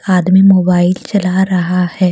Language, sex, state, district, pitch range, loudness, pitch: Hindi, female, Jharkhand, Deoghar, 180-190 Hz, -11 LUFS, 185 Hz